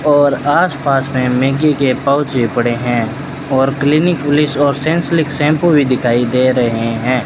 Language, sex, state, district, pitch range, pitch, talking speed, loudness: Hindi, male, Rajasthan, Bikaner, 125-145 Hz, 140 Hz, 165 wpm, -14 LUFS